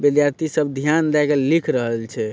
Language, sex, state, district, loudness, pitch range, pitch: Maithili, male, Bihar, Supaul, -19 LUFS, 135-155 Hz, 145 Hz